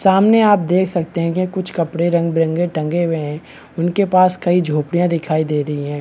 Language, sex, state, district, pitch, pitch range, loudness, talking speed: Hindi, male, Bihar, Madhepura, 170 Hz, 160-185 Hz, -17 LUFS, 200 wpm